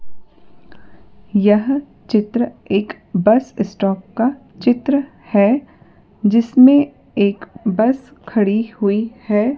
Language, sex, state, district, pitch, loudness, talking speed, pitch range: Hindi, female, Madhya Pradesh, Dhar, 225 Hz, -17 LUFS, 90 wpm, 205-255 Hz